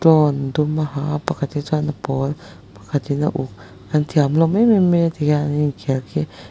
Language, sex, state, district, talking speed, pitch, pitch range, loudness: Mizo, male, Mizoram, Aizawl, 240 wpm, 150 Hz, 135-155 Hz, -19 LUFS